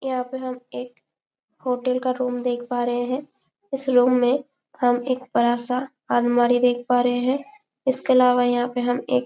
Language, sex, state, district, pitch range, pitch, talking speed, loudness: Hindi, female, Chhattisgarh, Bastar, 245-260 Hz, 250 Hz, 190 wpm, -22 LUFS